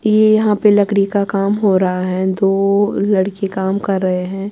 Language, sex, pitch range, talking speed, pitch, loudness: Urdu, female, 190-205 Hz, 200 wpm, 195 Hz, -15 LUFS